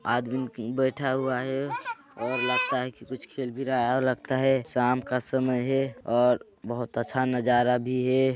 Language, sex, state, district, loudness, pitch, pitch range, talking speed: Hindi, male, Chhattisgarh, Sarguja, -27 LUFS, 130 Hz, 125-130 Hz, 180 wpm